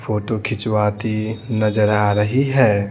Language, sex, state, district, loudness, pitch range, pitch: Hindi, male, Bihar, Patna, -18 LUFS, 105-110 Hz, 110 Hz